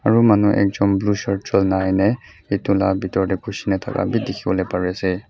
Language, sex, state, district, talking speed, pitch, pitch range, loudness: Nagamese, male, Mizoram, Aizawl, 195 wpm, 95 Hz, 95-100 Hz, -19 LUFS